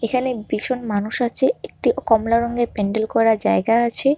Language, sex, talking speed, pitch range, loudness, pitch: Bengali, male, 160 wpm, 220-255 Hz, -19 LUFS, 235 Hz